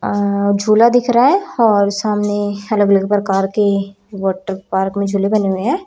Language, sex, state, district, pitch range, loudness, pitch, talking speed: Hindi, female, Haryana, Rohtak, 195-215 Hz, -15 LUFS, 205 Hz, 185 wpm